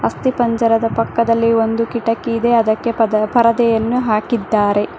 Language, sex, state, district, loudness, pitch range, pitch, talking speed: Kannada, female, Karnataka, Bangalore, -16 LUFS, 225-235 Hz, 230 Hz, 95 wpm